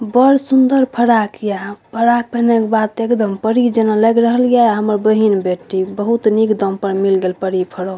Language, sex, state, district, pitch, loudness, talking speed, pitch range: Maithili, female, Bihar, Saharsa, 220 Hz, -14 LUFS, 205 wpm, 200-235 Hz